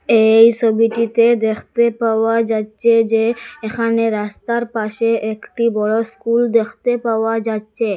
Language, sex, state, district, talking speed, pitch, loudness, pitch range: Bengali, female, Assam, Hailakandi, 115 wpm, 225 Hz, -16 LUFS, 220-230 Hz